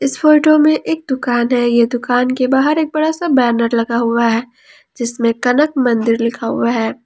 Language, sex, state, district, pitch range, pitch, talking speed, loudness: Hindi, female, Jharkhand, Palamu, 235-295 Hz, 245 Hz, 195 wpm, -15 LUFS